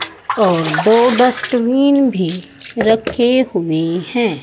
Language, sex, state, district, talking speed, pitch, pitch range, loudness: Hindi, female, Haryana, Rohtak, 95 wpm, 225 Hz, 180-245 Hz, -14 LUFS